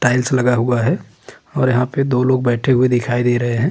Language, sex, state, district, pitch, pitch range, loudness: Hindi, male, Uttarakhand, Tehri Garhwal, 125 Hz, 120-130 Hz, -16 LUFS